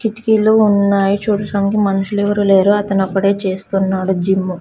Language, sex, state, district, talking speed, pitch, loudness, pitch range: Telugu, female, Andhra Pradesh, Sri Satya Sai, 115 wpm, 200 Hz, -15 LUFS, 195-205 Hz